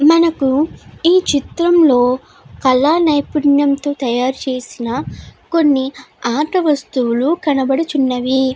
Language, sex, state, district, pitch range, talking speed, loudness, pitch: Telugu, female, Andhra Pradesh, Guntur, 260-315 Hz, 90 wpm, -15 LUFS, 280 Hz